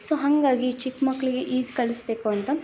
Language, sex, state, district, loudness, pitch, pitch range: Kannada, female, Karnataka, Belgaum, -25 LUFS, 255 Hz, 240-275 Hz